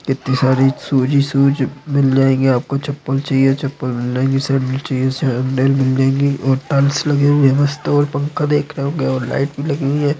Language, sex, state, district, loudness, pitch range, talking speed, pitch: Hindi, male, Bihar, Supaul, -16 LUFS, 135-145 Hz, 195 wpm, 135 Hz